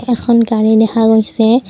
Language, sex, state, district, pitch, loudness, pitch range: Assamese, female, Assam, Kamrup Metropolitan, 225 Hz, -11 LUFS, 220-235 Hz